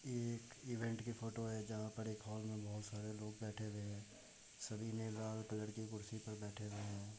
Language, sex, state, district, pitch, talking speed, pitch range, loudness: Hindi, male, Bihar, Muzaffarpur, 110 Hz, 225 wpm, 105-110 Hz, -47 LUFS